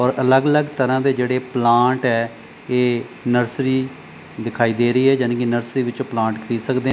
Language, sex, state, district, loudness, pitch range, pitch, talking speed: Punjabi, male, Punjab, Pathankot, -19 LUFS, 120-130 Hz, 125 Hz, 180 wpm